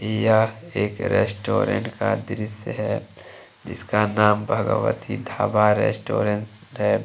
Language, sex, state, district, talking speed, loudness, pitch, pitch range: Hindi, male, Jharkhand, Deoghar, 100 wpm, -22 LUFS, 105 Hz, 105-115 Hz